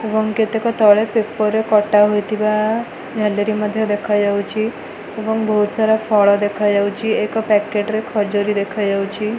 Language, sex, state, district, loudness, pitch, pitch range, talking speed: Odia, female, Odisha, Malkangiri, -17 LUFS, 215 Hz, 205-220 Hz, 135 wpm